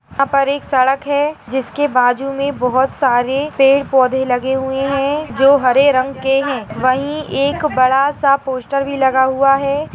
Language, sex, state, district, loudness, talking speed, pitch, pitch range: Hindi, female, Bihar, Purnia, -15 LUFS, 165 wpm, 275 Hz, 260-280 Hz